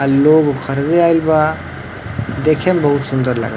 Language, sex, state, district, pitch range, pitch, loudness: Bhojpuri, male, Uttar Pradesh, Varanasi, 130-155 Hz, 140 Hz, -14 LUFS